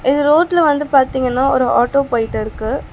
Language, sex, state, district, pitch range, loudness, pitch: Tamil, female, Tamil Nadu, Chennai, 245-290 Hz, -15 LUFS, 265 Hz